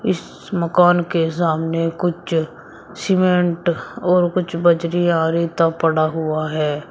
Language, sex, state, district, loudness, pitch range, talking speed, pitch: Hindi, male, Uttar Pradesh, Shamli, -18 LUFS, 160-175 Hz, 120 wpm, 170 Hz